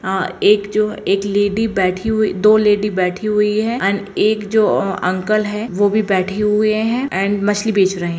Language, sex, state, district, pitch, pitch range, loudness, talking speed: Kumaoni, female, Uttarakhand, Uttarkashi, 205 Hz, 195-215 Hz, -16 LUFS, 200 wpm